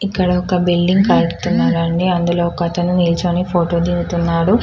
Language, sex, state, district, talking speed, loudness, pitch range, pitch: Telugu, female, Telangana, Karimnagar, 130 wpm, -16 LUFS, 170-180 Hz, 175 Hz